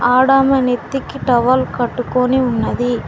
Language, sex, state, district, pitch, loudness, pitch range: Telugu, female, Telangana, Mahabubabad, 250 Hz, -15 LUFS, 245-260 Hz